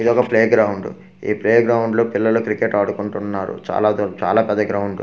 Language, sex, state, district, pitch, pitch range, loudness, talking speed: Telugu, male, Andhra Pradesh, Manyam, 105 Hz, 100-115 Hz, -18 LUFS, 165 wpm